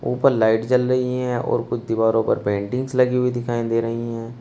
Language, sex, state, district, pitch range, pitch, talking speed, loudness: Hindi, male, Uttar Pradesh, Shamli, 115-125 Hz, 120 Hz, 220 wpm, -21 LUFS